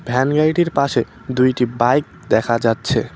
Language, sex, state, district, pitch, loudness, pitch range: Bengali, male, West Bengal, Cooch Behar, 130 Hz, -18 LUFS, 120-145 Hz